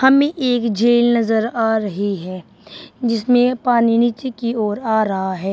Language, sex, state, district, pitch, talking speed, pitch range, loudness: Hindi, female, Uttar Pradesh, Shamli, 230 Hz, 165 wpm, 215-245 Hz, -17 LUFS